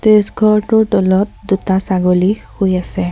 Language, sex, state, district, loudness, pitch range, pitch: Assamese, female, Assam, Sonitpur, -14 LUFS, 185-215 Hz, 195 Hz